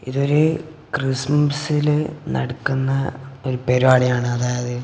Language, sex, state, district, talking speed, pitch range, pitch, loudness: Malayalam, male, Kerala, Kasaragod, 75 wpm, 125-150 Hz, 135 Hz, -20 LUFS